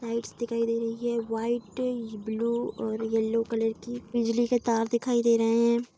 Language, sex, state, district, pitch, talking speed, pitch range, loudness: Hindi, female, Bihar, Vaishali, 230 Hz, 180 wpm, 225-235 Hz, -28 LUFS